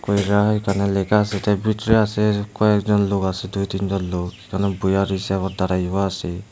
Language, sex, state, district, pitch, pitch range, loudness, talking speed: Bengali, male, Tripura, Unakoti, 100 Hz, 95-105 Hz, -20 LUFS, 175 wpm